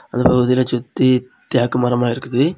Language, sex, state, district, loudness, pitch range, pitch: Tamil, male, Tamil Nadu, Kanyakumari, -17 LUFS, 120-130 Hz, 125 Hz